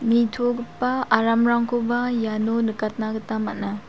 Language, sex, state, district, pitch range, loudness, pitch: Garo, female, Meghalaya, South Garo Hills, 220-240 Hz, -23 LUFS, 230 Hz